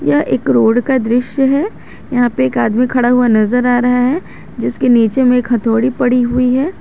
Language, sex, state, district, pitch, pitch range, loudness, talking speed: Hindi, female, Jharkhand, Garhwa, 245 Hz, 230-255 Hz, -13 LUFS, 205 wpm